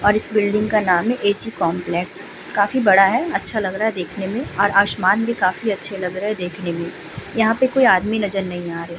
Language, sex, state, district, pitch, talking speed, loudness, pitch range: Hindi, female, Uttar Pradesh, Budaun, 205 Hz, 245 wpm, -19 LUFS, 185-220 Hz